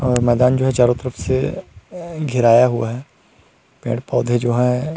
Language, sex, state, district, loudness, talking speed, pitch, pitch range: Hindi, male, Chhattisgarh, Rajnandgaon, -17 LUFS, 170 wpm, 125 Hz, 120-130 Hz